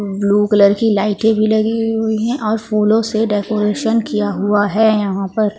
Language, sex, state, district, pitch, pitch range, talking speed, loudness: Hindi, female, Jharkhand, Palamu, 215 Hz, 205-220 Hz, 170 wpm, -15 LUFS